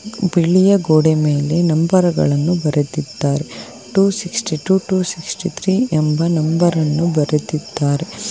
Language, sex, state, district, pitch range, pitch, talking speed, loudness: Kannada, female, Karnataka, Bangalore, 150-185 Hz, 165 Hz, 115 wpm, -16 LUFS